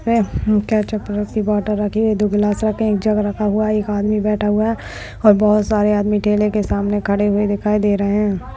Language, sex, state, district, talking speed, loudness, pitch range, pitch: Hindi, male, Maharashtra, Dhule, 170 wpm, -17 LUFS, 205-215 Hz, 210 Hz